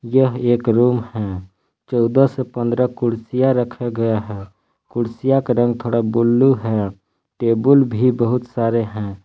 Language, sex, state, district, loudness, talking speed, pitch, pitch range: Hindi, male, Jharkhand, Palamu, -18 LUFS, 145 wpm, 120 Hz, 115-125 Hz